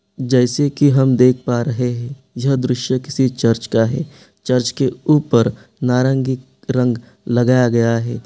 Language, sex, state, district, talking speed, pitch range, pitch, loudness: Hindi, male, Bihar, Sitamarhi, 155 wpm, 120-130 Hz, 125 Hz, -17 LUFS